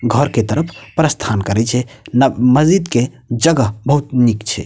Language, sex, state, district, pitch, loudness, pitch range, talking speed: Maithili, male, Bihar, Purnia, 125 Hz, -15 LUFS, 115-145 Hz, 165 wpm